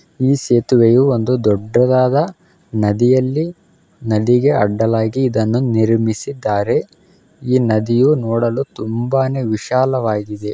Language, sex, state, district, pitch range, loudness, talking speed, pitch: Kannada, male, Karnataka, Bellary, 110-130 Hz, -16 LUFS, 80 wpm, 120 Hz